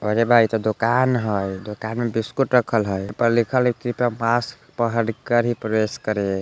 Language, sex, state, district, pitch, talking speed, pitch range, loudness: Bajjika, female, Bihar, Vaishali, 115 Hz, 215 wpm, 110-120 Hz, -21 LUFS